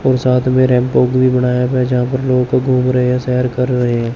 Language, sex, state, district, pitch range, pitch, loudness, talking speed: Hindi, male, Chandigarh, Chandigarh, 125-130 Hz, 125 Hz, -14 LUFS, 260 wpm